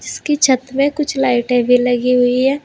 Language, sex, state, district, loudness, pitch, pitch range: Hindi, female, Uttar Pradesh, Saharanpur, -15 LUFS, 255 Hz, 245-275 Hz